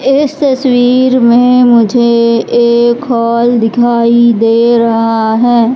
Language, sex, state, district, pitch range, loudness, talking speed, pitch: Hindi, female, Madhya Pradesh, Katni, 230-245 Hz, -9 LUFS, 105 wpm, 235 Hz